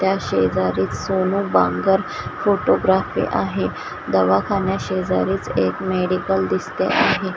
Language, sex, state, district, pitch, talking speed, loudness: Marathi, female, Maharashtra, Washim, 145 Hz, 105 wpm, -20 LUFS